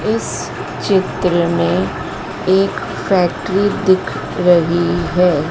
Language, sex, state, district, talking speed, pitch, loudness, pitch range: Hindi, female, Madhya Pradesh, Dhar, 85 wpm, 180 Hz, -16 LUFS, 170-190 Hz